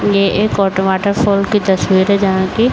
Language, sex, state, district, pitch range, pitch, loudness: Hindi, female, Uttar Pradesh, Varanasi, 190-200 Hz, 200 Hz, -14 LUFS